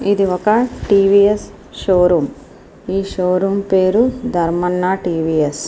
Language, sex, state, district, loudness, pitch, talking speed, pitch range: Telugu, female, Andhra Pradesh, Srikakulam, -16 LUFS, 190 Hz, 125 wpm, 180-200 Hz